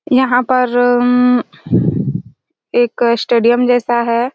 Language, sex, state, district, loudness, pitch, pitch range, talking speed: Hindi, female, Chhattisgarh, Raigarh, -14 LUFS, 245 Hz, 240-250 Hz, 95 wpm